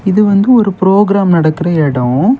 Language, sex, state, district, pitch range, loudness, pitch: Tamil, male, Tamil Nadu, Kanyakumari, 165-205 Hz, -10 LUFS, 195 Hz